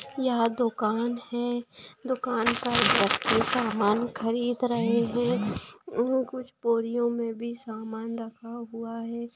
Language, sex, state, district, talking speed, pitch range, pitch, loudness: Hindi, female, Bihar, Saran, 115 wpm, 230-245 Hz, 235 Hz, -27 LUFS